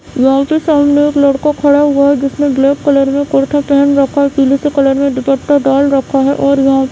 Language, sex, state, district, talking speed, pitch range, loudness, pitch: Hindi, female, Bihar, Madhepura, 240 wpm, 275-285 Hz, -11 LUFS, 280 Hz